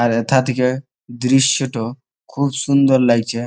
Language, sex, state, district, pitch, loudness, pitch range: Bengali, male, West Bengal, Malda, 130 Hz, -16 LUFS, 120-135 Hz